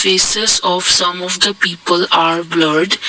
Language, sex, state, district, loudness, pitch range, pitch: English, male, Assam, Kamrup Metropolitan, -13 LUFS, 170-190 Hz, 180 Hz